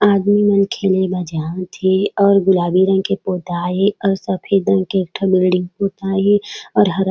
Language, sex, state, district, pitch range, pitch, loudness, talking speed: Chhattisgarhi, female, Chhattisgarh, Raigarh, 185-200 Hz, 195 Hz, -16 LUFS, 170 wpm